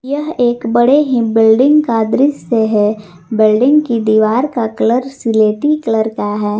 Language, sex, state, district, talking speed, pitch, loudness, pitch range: Hindi, female, Jharkhand, Garhwa, 155 wpm, 230 Hz, -13 LUFS, 220-265 Hz